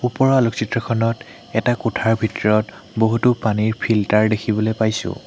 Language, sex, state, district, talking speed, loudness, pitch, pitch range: Assamese, male, Assam, Hailakandi, 115 wpm, -19 LUFS, 110 Hz, 110-115 Hz